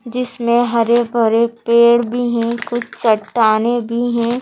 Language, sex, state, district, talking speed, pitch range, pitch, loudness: Hindi, female, Madhya Pradesh, Bhopal, 135 wpm, 230-240 Hz, 235 Hz, -16 LUFS